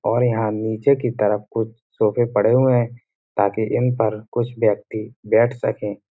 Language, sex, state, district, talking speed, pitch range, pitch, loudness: Hindi, male, Uttar Pradesh, Budaun, 165 wpm, 105-120 Hz, 110 Hz, -20 LUFS